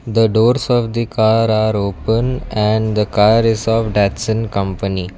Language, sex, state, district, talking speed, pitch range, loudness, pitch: English, male, Karnataka, Bangalore, 160 wpm, 105-115 Hz, -16 LUFS, 110 Hz